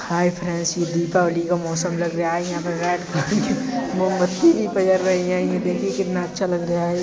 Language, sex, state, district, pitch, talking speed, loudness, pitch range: Hindi, female, Uttar Pradesh, Etah, 175 Hz, 195 wpm, -21 LUFS, 170-185 Hz